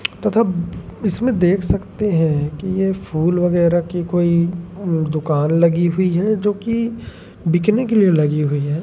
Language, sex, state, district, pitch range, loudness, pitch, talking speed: Hindi, male, Madhya Pradesh, Umaria, 165-200 Hz, -18 LUFS, 175 Hz, 150 wpm